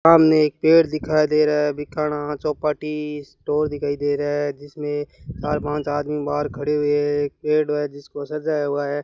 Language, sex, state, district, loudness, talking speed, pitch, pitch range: Hindi, male, Rajasthan, Bikaner, -21 LUFS, 185 wpm, 150 Hz, 145-150 Hz